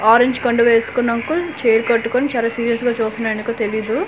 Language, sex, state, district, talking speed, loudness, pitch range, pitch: Telugu, female, Andhra Pradesh, Manyam, 175 wpm, -17 LUFS, 225-245 Hz, 235 Hz